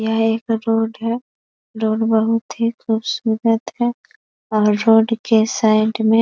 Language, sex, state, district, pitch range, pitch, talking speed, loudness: Hindi, female, Bihar, East Champaran, 220-230 Hz, 225 Hz, 145 wpm, -18 LUFS